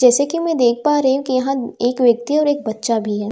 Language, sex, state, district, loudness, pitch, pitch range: Hindi, female, Bihar, Katihar, -17 LUFS, 255 Hz, 235-285 Hz